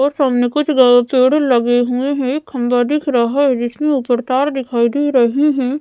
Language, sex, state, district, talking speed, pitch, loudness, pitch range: Hindi, female, Odisha, Sambalpur, 205 wpm, 260 Hz, -15 LUFS, 245-285 Hz